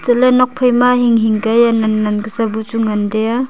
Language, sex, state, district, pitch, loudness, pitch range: Wancho, female, Arunachal Pradesh, Longding, 225 Hz, -14 LUFS, 220-245 Hz